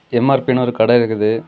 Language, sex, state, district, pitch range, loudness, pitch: Tamil, male, Tamil Nadu, Kanyakumari, 115-130 Hz, -15 LUFS, 120 Hz